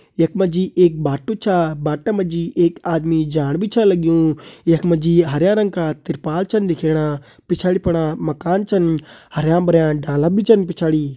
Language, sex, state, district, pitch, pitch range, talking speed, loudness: Kumaoni, male, Uttarakhand, Uttarkashi, 170 Hz, 155-185 Hz, 180 wpm, -17 LUFS